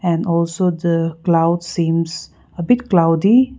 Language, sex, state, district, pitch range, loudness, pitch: English, female, Nagaland, Kohima, 165-185 Hz, -17 LUFS, 170 Hz